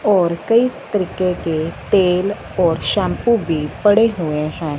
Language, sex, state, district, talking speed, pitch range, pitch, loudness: Hindi, female, Punjab, Fazilka, 150 wpm, 160-210 Hz, 185 Hz, -17 LUFS